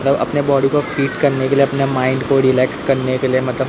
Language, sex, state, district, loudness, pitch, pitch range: Hindi, male, Maharashtra, Mumbai Suburban, -16 LUFS, 135 Hz, 130-140 Hz